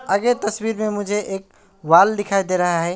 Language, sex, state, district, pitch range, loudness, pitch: Hindi, male, West Bengal, Alipurduar, 185-210 Hz, -19 LUFS, 200 Hz